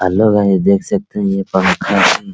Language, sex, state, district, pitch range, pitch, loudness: Hindi, male, Bihar, Araria, 95-105 Hz, 100 Hz, -14 LUFS